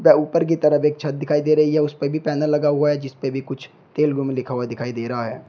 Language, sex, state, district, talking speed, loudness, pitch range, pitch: Hindi, male, Uttar Pradesh, Shamli, 305 wpm, -20 LUFS, 135-150 Hz, 150 Hz